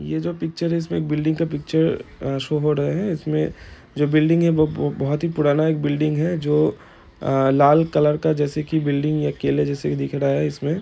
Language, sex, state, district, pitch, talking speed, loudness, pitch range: Hindi, male, Bihar, Saran, 150 Hz, 210 wpm, -21 LUFS, 145-160 Hz